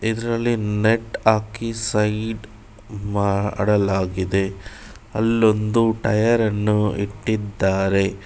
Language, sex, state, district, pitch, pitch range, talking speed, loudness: Kannada, male, Karnataka, Bangalore, 105 Hz, 100-110 Hz, 65 wpm, -21 LUFS